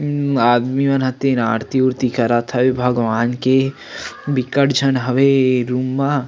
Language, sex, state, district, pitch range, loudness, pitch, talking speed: Chhattisgarhi, male, Chhattisgarh, Sarguja, 125-135 Hz, -17 LUFS, 130 Hz, 165 wpm